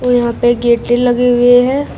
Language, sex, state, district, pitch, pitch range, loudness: Hindi, female, Uttar Pradesh, Shamli, 245 Hz, 240-245 Hz, -11 LUFS